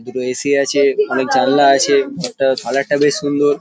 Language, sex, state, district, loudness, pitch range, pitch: Bengali, male, West Bengal, Paschim Medinipur, -15 LUFS, 130-145 Hz, 140 Hz